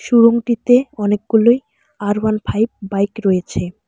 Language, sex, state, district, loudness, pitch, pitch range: Bengali, male, West Bengal, Alipurduar, -16 LUFS, 220 Hz, 205-235 Hz